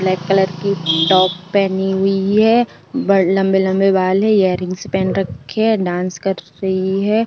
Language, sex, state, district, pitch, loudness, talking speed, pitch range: Hindi, female, Uttar Pradesh, Budaun, 190 Hz, -16 LUFS, 150 wpm, 185-200 Hz